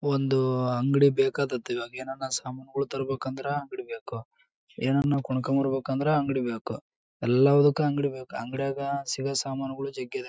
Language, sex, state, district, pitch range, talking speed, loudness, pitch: Kannada, male, Karnataka, Bellary, 130-140 Hz, 115 wpm, -27 LUFS, 135 Hz